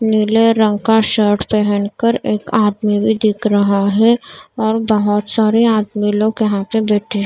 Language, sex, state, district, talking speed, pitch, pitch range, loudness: Hindi, female, Maharashtra, Mumbai Suburban, 155 wpm, 215 Hz, 205-220 Hz, -15 LUFS